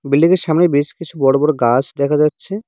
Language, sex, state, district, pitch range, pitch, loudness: Bengali, male, West Bengal, Cooch Behar, 140-170 Hz, 150 Hz, -15 LUFS